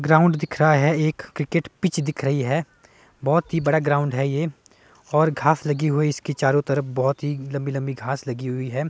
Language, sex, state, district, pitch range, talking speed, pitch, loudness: Hindi, male, Himachal Pradesh, Shimla, 135-155 Hz, 210 wpm, 145 Hz, -22 LUFS